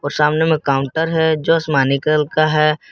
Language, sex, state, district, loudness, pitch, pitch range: Hindi, male, Jharkhand, Garhwa, -16 LUFS, 155 Hz, 145-160 Hz